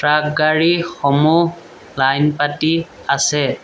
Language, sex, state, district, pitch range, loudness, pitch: Assamese, male, Assam, Sonitpur, 140-165 Hz, -16 LUFS, 150 Hz